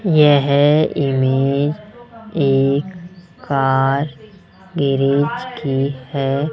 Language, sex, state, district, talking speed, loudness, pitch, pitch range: Hindi, male, Rajasthan, Jaipur, 65 wpm, -17 LUFS, 145 Hz, 135-175 Hz